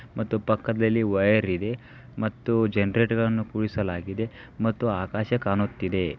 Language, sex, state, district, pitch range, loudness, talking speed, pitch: Kannada, male, Karnataka, Belgaum, 100-115 Hz, -26 LUFS, 105 wpm, 110 Hz